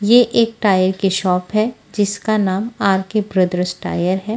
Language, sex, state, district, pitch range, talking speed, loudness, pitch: Hindi, female, Punjab, Fazilka, 185-215 Hz, 165 wpm, -17 LUFS, 200 Hz